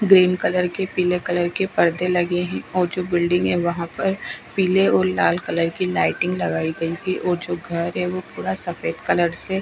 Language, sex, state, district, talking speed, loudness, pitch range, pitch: Hindi, female, Punjab, Fazilka, 205 wpm, -21 LUFS, 170-185 Hz, 180 Hz